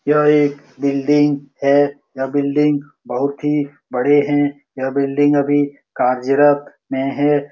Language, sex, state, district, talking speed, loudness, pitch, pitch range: Hindi, male, Uttar Pradesh, Muzaffarnagar, 125 wpm, -17 LUFS, 145 Hz, 140-145 Hz